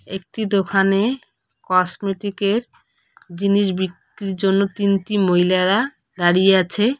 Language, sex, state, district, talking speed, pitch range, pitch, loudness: Bengali, female, West Bengal, Cooch Behar, 85 wpm, 185-205 Hz, 195 Hz, -19 LUFS